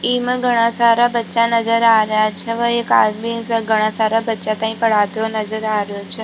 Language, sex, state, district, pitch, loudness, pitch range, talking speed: Rajasthani, female, Rajasthan, Nagaur, 225 Hz, -16 LUFS, 215-230 Hz, 200 wpm